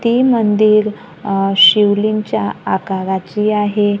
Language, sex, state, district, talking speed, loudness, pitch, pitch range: Marathi, female, Maharashtra, Gondia, 90 wpm, -14 LUFS, 210 Hz, 195-215 Hz